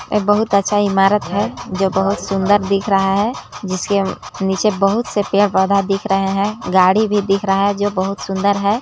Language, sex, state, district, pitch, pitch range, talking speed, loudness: Hindi, female, Chhattisgarh, Balrampur, 200 Hz, 195-205 Hz, 195 wpm, -16 LUFS